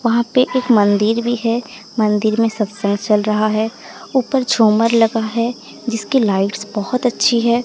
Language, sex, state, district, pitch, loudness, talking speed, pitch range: Hindi, female, Odisha, Sambalpur, 225 Hz, -16 LUFS, 165 wpm, 215-240 Hz